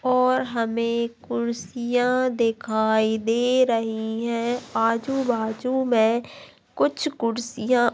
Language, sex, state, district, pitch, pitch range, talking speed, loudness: Hindi, female, Andhra Pradesh, Chittoor, 235 Hz, 225-250 Hz, 180 wpm, -23 LUFS